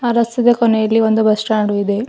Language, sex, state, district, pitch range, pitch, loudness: Kannada, female, Karnataka, Bidar, 215-235 Hz, 220 Hz, -15 LUFS